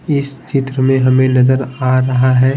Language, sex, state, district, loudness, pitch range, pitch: Hindi, male, Bihar, Patna, -13 LUFS, 130-135 Hz, 130 Hz